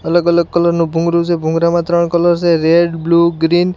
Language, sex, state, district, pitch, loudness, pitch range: Gujarati, male, Gujarat, Gandhinagar, 170 Hz, -13 LUFS, 165-170 Hz